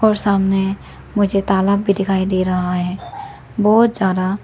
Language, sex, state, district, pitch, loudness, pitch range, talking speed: Hindi, female, Arunachal Pradesh, Lower Dibang Valley, 195 Hz, -17 LUFS, 185-200 Hz, 150 wpm